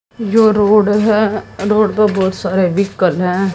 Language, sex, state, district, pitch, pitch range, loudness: Hindi, female, Haryana, Jhajjar, 205 Hz, 190-215 Hz, -14 LUFS